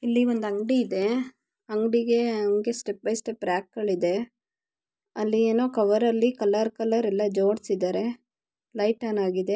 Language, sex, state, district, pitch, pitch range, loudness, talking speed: Kannada, female, Karnataka, Gulbarga, 220 Hz, 205-235 Hz, -25 LUFS, 125 wpm